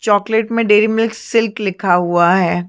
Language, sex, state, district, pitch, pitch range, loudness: Hindi, female, Chhattisgarh, Sarguja, 210 Hz, 175-225 Hz, -15 LUFS